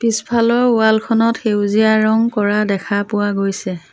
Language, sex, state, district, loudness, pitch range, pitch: Assamese, female, Assam, Sonitpur, -16 LUFS, 205-230 Hz, 220 Hz